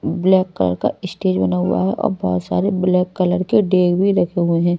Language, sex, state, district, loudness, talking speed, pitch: Hindi, female, Punjab, Kapurthala, -18 LUFS, 225 wpm, 180 Hz